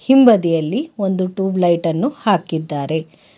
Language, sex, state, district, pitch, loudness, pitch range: Kannada, female, Karnataka, Bangalore, 185 Hz, -17 LUFS, 165-220 Hz